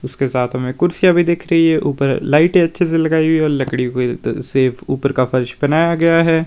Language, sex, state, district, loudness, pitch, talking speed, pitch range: Hindi, male, Himachal Pradesh, Shimla, -15 LUFS, 150 Hz, 205 wpm, 130-165 Hz